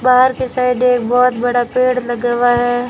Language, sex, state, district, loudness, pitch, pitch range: Hindi, female, Rajasthan, Bikaner, -14 LUFS, 245 Hz, 245-250 Hz